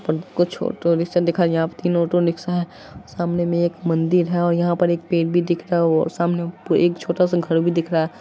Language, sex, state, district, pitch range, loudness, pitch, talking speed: Maithili, female, Bihar, Supaul, 170-175 Hz, -20 LUFS, 175 Hz, 255 wpm